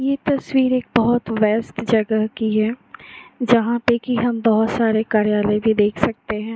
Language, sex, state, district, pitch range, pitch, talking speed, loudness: Hindi, female, Jharkhand, Jamtara, 215-240 Hz, 225 Hz, 185 wpm, -19 LUFS